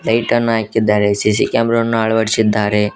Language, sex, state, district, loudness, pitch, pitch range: Kannada, male, Karnataka, Koppal, -15 LUFS, 110 Hz, 105-115 Hz